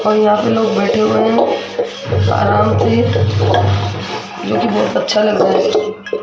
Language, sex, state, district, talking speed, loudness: Hindi, female, Rajasthan, Jaipur, 155 wpm, -14 LUFS